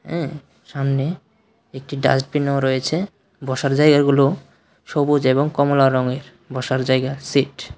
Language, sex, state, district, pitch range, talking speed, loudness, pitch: Bengali, male, Tripura, West Tripura, 130-145 Hz, 115 wpm, -19 LUFS, 140 Hz